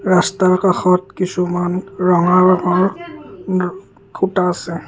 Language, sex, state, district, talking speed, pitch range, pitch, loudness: Assamese, male, Assam, Kamrup Metropolitan, 100 wpm, 180-185 Hz, 185 Hz, -16 LUFS